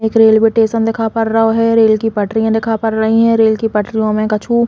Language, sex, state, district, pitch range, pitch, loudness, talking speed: Bundeli, female, Uttar Pradesh, Hamirpur, 220-225 Hz, 225 Hz, -13 LUFS, 255 wpm